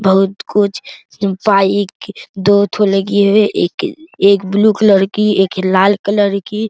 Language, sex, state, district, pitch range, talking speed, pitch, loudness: Hindi, male, Bihar, Araria, 195-210 Hz, 145 wpm, 200 Hz, -13 LUFS